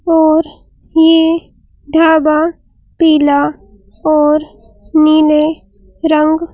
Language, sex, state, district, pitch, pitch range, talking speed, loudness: Hindi, female, Madhya Pradesh, Bhopal, 315 Hz, 305-325 Hz, 65 wpm, -11 LUFS